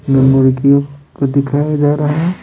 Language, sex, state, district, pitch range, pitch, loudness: Hindi, male, Bihar, Patna, 140-150 Hz, 140 Hz, -13 LUFS